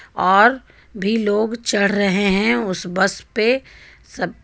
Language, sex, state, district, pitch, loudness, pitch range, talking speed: Hindi, female, Jharkhand, Ranchi, 205 Hz, -18 LUFS, 195-230 Hz, 135 wpm